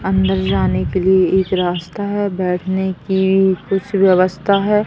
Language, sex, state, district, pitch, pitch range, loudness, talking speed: Hindi, female, Madhya Pradesh, Katni, 190 Hz, 180-195 Hz, -16 LUFS, 150 wpm